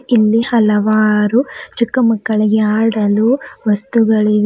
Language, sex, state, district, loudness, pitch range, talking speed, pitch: Kannada, female, Karnataka, Bidar, -14 LUFS, 210-235 Hz, 80 wpm, 220 Hz